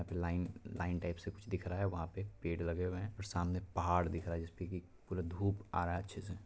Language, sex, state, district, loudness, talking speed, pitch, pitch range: Hindi, male, Bihar, Purnia, -40 LUFS, 280 wpm, 90 Hz, 85-100 Hz